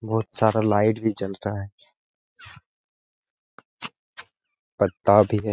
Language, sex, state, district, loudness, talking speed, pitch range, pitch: Hindi, male, Jharkhand, Jamtara, -22 LUFS, 110 wpm, 100-110 Hz, 105 Hz